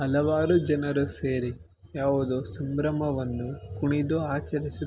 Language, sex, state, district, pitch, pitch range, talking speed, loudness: Kannada, male, Karnataka, Mysore, 140 Hz, 130-150 Hz, 85 wpm, -27 LUFS